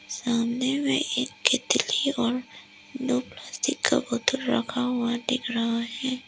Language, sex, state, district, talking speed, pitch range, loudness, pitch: Hindi, female, Arunachal Pradesh, Lower Dibang Valley, 135 wpm, 235-260 Hz, -26 LUFS, 250 Hz